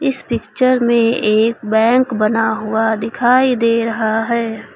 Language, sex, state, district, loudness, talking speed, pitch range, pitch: Hindi, female, Uttar Pradesh, Lucknow, -15 LUFS, 140 wpm, 220-240 Hz, 230 Hz